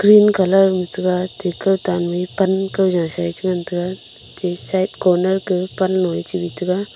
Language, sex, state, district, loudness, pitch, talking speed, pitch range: Wancho, female, Arunachal Pradesh, Longding, -18 LUFS, 185 Hz, 155 wpm, 180-190 Hz